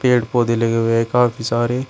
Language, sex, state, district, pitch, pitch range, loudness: Hindi, male, Uttar Pradesh, Shamli, 120 Hz, 115-125 Hz, -17 LUFS